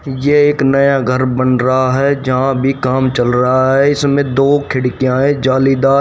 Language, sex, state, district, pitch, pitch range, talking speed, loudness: Hindi, male, Haryana, Rohtak, 135 Hz, 130-140 Hz, 180 wpm, -13 LUFS